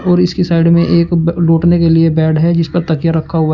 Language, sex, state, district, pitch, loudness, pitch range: Hindi, male, Uttar Pradesh, Shamli, 165 Hz, -12 LUFS, 165-170 Hz